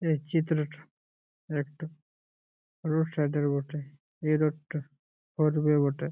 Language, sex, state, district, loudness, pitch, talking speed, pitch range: Bengali, male, West Bengal, Jalpaiguri, -30 LUFS, 150 Hz, 110 wpm, 145-155 Hz